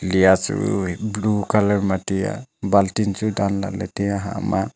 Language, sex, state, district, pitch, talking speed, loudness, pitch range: Wancho, male, Arunachal Pradesh, Longding, 100 Hz, 190 wpm, -21 LUFS, 95-105 Hz